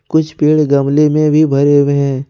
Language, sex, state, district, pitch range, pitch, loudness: Hindi, male, Jharkhand, Ranchi, 140-155 Hz, 145 Hz, -12 LUFS